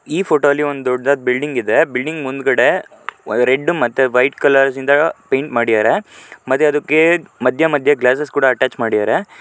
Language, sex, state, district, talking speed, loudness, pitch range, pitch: Kannada, male, Karnataka, Shimoga, 145 wpm, -15 LUFS, 125-145 Hz, 135 Hz